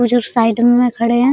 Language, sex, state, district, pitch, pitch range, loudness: Hindi, female, Bihar, Araria, 240 Hz, 235-245 Hz, -14 LUFS